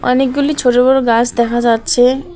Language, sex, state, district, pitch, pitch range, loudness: Bengali, female, West Bengal, Alipurduar, 250 Hz, 240-265 Hz, -13 LUFS